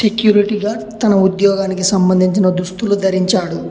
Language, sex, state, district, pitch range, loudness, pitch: Telugu, male, Telangana, Hyderabad, 185-210 Hz, -14 LUFS, 195 Hz